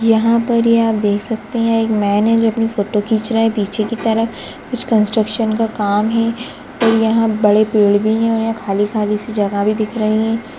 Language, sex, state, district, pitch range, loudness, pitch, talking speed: Hindi, female, Uttarakhand, Tehri Garhwal, 210-225 Hz, -16 LUFS, 225 Hz, 225 wpm